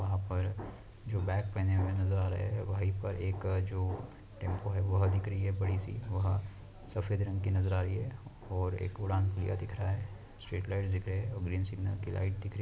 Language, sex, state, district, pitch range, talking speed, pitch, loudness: Hindi, male, Chhattisgarh, Raigarh, 95-100 Hz, 240 wpm, 95 Hz, -35 LUFS